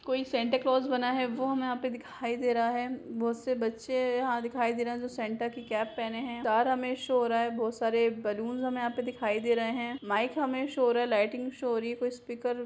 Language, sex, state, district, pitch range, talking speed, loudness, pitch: Hindi, female, Chhattisgarh, Raigarh, 230-255 Hz, 270 wpm, -31 LUFS, 245 Hz